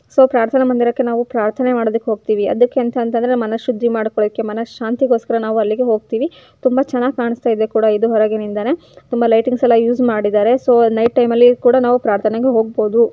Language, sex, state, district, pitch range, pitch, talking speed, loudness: Kannada, female, Karnataka, Gulbarga, 220-245 Hz, 235 Hz, 155 wpm, -15 LUFS